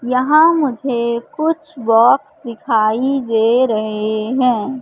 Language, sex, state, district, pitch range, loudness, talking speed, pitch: Hindi, female, Madhya Pradesh, Katni, 225-270 Hz, -15 LUFS, 100 wpm, 245 Hz